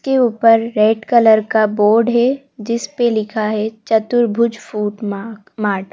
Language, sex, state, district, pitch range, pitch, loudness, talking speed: Hindi, female, Madhya Pradesh, Bhopal, 215-235 Hz, 220 Hz, -16 LUFS, 150 wpm